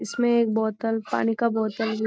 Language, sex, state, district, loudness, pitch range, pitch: Hindi, female, Bihar, Jamui, -24 LUFS, 220-230 Hz, 225 Hz